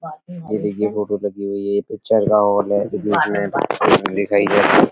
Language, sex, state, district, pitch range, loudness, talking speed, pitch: Hindi, male, Uttar Pradesh, Etah, 100-105 Hz, -18 LUFS, 195 wpm, 100 Hz